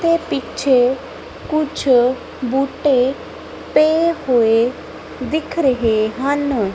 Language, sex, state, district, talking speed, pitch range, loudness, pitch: Punjabi, female, Punjab, Kapurthala, 80 wpm, 245-305 Hz, -17 LUFS, 265 Hz